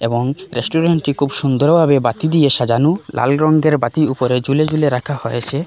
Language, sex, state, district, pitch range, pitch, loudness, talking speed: Bengali, male, Assam, Hailakandi, 125-155 Hz, 140 Hz, -15 LUFS, 160 wpm